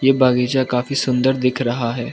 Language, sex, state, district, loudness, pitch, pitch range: Hindi, male, Arunachal Pradesh, Lower Dibang Valley, -18 LUFS, 125 Hz, 125-130 Hz